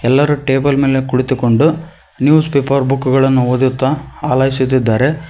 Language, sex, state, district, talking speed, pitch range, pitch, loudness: Kannada, male, Karnataka, Koppal, 115 wpm, 130-140 Hz, 135 Hz, -14 LUFS